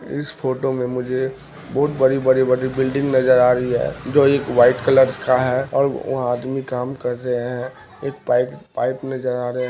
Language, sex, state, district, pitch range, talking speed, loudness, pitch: Maithili, male, Bihar, Kishanganj, 125-135 Hz, 180 wpm, -19 LUFS, 130 Hz